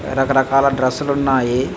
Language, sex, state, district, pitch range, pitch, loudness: Telugu, male, Andhra Pradesh, Visakhapatnam, 130-135 Hz, 135 Hz, -17 LUFS